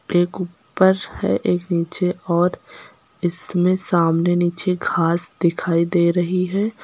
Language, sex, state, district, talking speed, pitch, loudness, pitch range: Hindi, female, Uttar Pradesh, Lucknow, 125 wpm, 175 Hz, -20 LUFS, 170-185 Hz